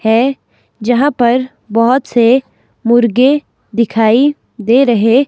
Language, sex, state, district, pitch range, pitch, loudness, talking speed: Hindi, female, Himachal Pradesh, Shimla, 230-260 Hz, 240 Hz, -12 LUFS, 100 wpm